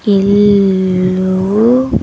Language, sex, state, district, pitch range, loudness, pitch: Telugu, female, Andhra Pradesh, Sri Satya Sai, 185-205 Hz, -11 LUFS, 195 Hz